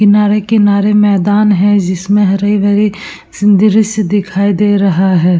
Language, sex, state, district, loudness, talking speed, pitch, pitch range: Hindi, female, Uttar Pradesh, Etah, -10 LUFS, 120 wpm, 205 Hz, 195-210 Hz